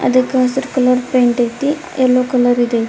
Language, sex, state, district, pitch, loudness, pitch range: Kannada, female, Karnataka, Dharwad, 255 Hz, -15 LUFS, 245-260 Hz